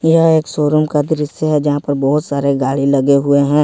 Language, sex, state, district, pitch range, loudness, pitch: Hindi, male, Jharkhand, Ranchi, 140-155 Hz, -14 LUFS, 145 Hz